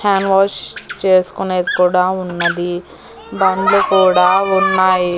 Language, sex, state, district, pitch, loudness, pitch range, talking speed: Telugu, female, Andhra Pradesh, Annamaya, 185 Hz, -14 LUFS, 180-195 Hz, 95 wpm